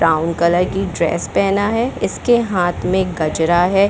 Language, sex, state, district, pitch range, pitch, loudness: Hindi, female, Chhattisgarh, Bilaspur, 170-200 Hz, 180 Hz, -17 LUFS